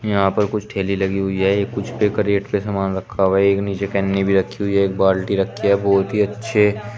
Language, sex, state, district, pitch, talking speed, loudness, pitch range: Hindi, male, Uttar Pradesh, Shamli, 100 Hz, 250 wpm, -19 LUFS, 95-105 Hz